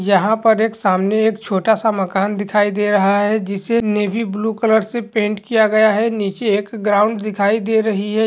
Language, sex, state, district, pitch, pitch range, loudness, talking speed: Hindi, male, Bihar, Samastipur, 215 Hz, 205-220 Hz, -17 LUFS, 180 wpm